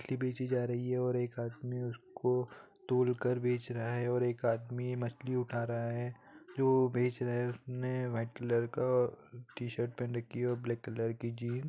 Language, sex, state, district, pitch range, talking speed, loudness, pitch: Hindi, male, West Bengal, Purulia, 120-125 Hz, 200 wpm, -35 LUFS, 125 Hz